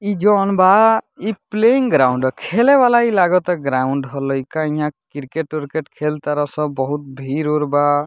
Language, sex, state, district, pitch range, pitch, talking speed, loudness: Bhojpuri, male, Bihar, Muzaffarpur, 145-200 Hz, 150 Hz, 180 wpm, -17 LUFS